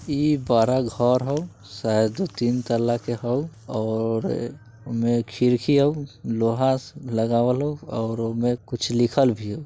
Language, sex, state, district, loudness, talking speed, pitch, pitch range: Bajjika, male, Bihar, Vaishali, -23 LUFS, 155 wpm, 120 Hz, 115-135 Hz